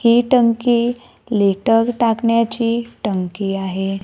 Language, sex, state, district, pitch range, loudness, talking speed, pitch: Marathi, female, Maharashtra, Gondia, 195-240 Hz, -17 LUFS, 90 wpm, 230 Hz